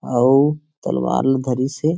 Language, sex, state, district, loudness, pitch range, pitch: Chhattisgarhi, male, Chhattisgarh, Sarguja, -18 LUFS, 130-155 Hz, 140 Hz